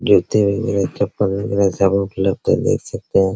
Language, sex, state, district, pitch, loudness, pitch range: Hindi, male, Bihar, Araria, 100 Hz, -18 LUFS, 95-100 Hz